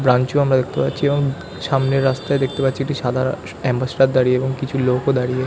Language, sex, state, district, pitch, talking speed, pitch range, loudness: Bengali, male, West Bengal, Malda, 135 Hz, 210 wpm, 130-135 Hz, -19 LUFS